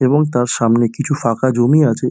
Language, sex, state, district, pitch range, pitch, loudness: Bengali, male, West Bengal, Dakshin Dinajpur, 120-145 Hz, 125 Hz, -15 LUFS